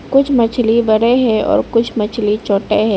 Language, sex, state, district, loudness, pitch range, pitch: Hindi, female, Arunachal Pradesh, Lower Dibang Valley, -14 LUFS, 210-240 Hz, 225 Hz